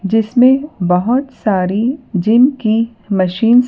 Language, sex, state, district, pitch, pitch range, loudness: Hindi, female, Madhya Pradesh, Dhar, 225 Hz, 195-250 Hz, -14 LUFS